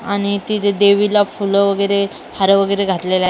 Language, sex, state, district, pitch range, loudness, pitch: Marathi, female, Maharashtra, Mumbai Suburban, 195-200 Hz, -15 LUFS, 200 Hz